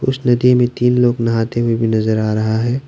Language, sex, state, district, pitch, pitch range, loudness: Hindi, male, Arunachal Pradesh, Lower Dibang Valley, 120 Hz, 115-125 Hz, -15 LUFS